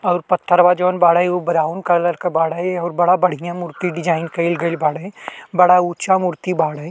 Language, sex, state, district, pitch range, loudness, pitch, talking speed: Bhojpuri, male, Uttar Pradesh, Ghazipur, 170-180 Hz, -17 LUFS, 175 Hz, 180 wpm